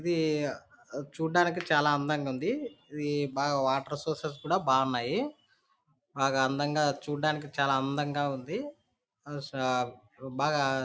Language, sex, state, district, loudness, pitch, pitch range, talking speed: Telugu, male, Andhra Pradesh, Anantapur, -30 LUFS, 145 Hz, 135-150 Hz, 95 wpm